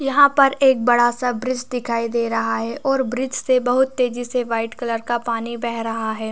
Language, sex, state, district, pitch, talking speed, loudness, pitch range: Hindi, female, Chhattisgarh, Raigarh, 240 Hz, 225 wpm, -20 LUFS, 230-255 Hz